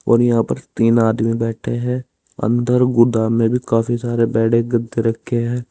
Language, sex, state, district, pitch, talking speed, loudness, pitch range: Hindi, male, Uttar Pradesh, Saharanpur, 115 Hz, 180 wpm, -17 LUFS, 115-120 Hz